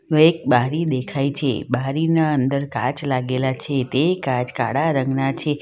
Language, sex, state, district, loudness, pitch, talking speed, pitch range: Gujarati, female, Gujarat, Valsad, -20 LUFS, 135 Hz, 150 wpm, 130-150 Hz